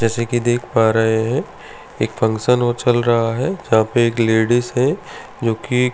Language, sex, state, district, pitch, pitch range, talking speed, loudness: Hindi, male, Delhi, New Delhi, 120 Hz, 115-125 Hz, 190 wpm, -17 LUFS